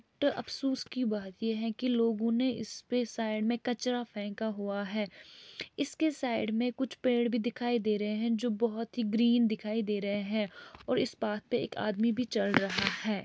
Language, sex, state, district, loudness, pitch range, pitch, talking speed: Hindi, female, Chhattisgarh, Bilaspur, -32 LUFS, 210-245 Hz, 230 Hz, 200 wpm